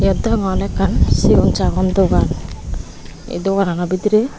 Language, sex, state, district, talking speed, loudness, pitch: Chakma, female, Tripura, Unakoti, 135 wpm, -16 LUFS, 180 Hz